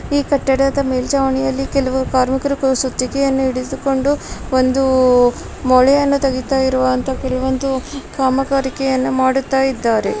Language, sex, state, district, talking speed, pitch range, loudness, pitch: Kannada, female, Karnataka, Mysore, 95 wpm, 255-275 Hz, -16 LUFS, 265 Hz